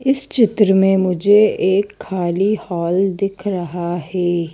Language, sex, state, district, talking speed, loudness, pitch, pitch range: Hindi, female, Madhya Pradesh, Bhopal, 130 wpm, -17 LUFS, 190 Hz, 175-205 Hz